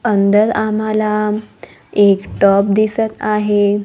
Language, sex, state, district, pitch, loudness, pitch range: Marathi, female, Maharashtra, Gondia, 210 Hz, -15 LUFS, 205-215 Hz